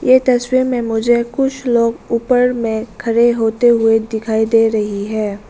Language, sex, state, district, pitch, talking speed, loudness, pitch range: Hindi, female, Arunachal Pradesh, Lower Dibang Valley, 230 Hz, 165 wpm, -15 LUFS, 220-245 Hz